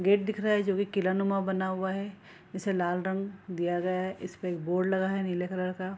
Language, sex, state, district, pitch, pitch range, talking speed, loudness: Hindi, female, Bihar, Kishanganj, 190 Hz, 185-195 Hz, 240 wpm, -30 LUFS